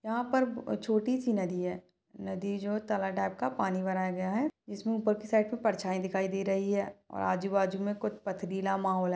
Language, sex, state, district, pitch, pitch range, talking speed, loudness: Hindi, female, Chhattisgarh, Balrampur, 195 Hz, 190-215 Hz, 215 wpm, -32 LUFS